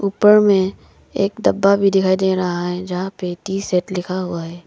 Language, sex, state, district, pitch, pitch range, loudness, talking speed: Hindi, female, Arunachal Pradesh, Papum Pare, 190 Hz, 180-195 Hz, -18 LUFS, 205 wpm